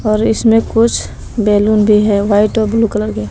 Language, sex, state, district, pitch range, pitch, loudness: Hindi, female, Jharkhand, Palamu, 210-225 Hz, 215 Hz, -13 LUFS